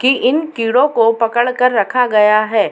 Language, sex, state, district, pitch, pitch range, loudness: Hindi, female, Uttar Pradesh, Muzaffarnagar, 235 Hz, 220-250 Hz, -13 LUFS